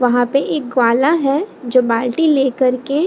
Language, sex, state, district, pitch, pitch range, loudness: Hindi, female, Bihar, Lakhisarai, 260 Hz, 245-290 Hz, -16 LUFS